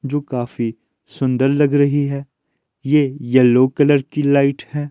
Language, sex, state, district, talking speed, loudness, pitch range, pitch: Hindi, male, Himachal Pradesh, Shimla, 145 wpm, -17 LUFS, 130-145 Hz, 140 Hz